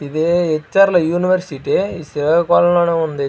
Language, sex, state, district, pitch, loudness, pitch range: Telugu, male, Andhra Pradesh, Srikakulam, 170 Hz, -16 LUFS, 155-175 Hz